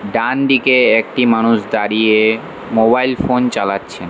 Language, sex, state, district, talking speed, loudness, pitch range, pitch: Bengali, male, West Bengal, Alipurduar, 100 wpm, -14 LUFS, 110-125 Hz, 115 Hz